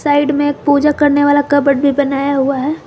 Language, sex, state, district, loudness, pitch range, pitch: Hindi, female, Jharkhand, Garhwa, -13 LUFS, 280-290 Hz, 285 Hz